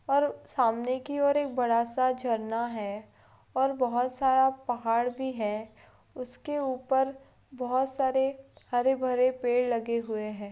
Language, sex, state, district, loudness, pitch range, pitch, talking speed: Hindi, female, Uttarakhand, Tehri Garhwal, -29 LUFS, 235-265 Hz, 255 Hz, 135 wpm